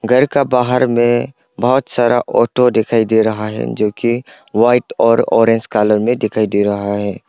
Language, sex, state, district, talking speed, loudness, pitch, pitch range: Hindi, male, Arunachal Pradesh, Longding, 175 wpm, -14 LUFS, 115 Hz, 110-125 Hz